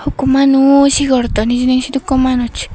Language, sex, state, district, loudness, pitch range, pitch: Chakma, female, Tripura, Dhalai, -12 LUFS, 255-275 Hz, 265 Hz